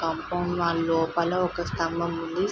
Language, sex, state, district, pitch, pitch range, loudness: Telugu, female, Andhra Pradesh, Srikakulam, 170 Hz, 165-175 Hz, -26 LUFS